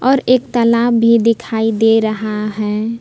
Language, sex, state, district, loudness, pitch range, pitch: Hindi, female, Jharkhand, Palamu, -14 LUFS, 220-235 Hz, 230 Hz